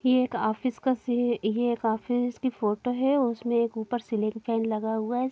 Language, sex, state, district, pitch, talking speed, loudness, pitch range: Hindi, female, Bihar, Gopalganj, 235 Hz, 205 wpm, -27 LUFS, 220-250 Hz